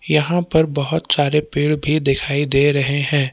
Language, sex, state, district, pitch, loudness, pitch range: Hindi, male, Jharkhand, Palamu, 145 Hz, -17 LUFS, 140-155 Hz